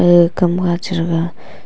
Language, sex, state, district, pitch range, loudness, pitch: Wancho, female, Arunachal Pradesh, Longding, 170-175 Hz, -16 LUFS, 175 Hz